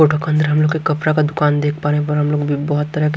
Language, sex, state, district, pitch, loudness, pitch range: Hindi, male, Haryana, Rohtak, 150 Hz, -17 LUFS, 150-155 Hz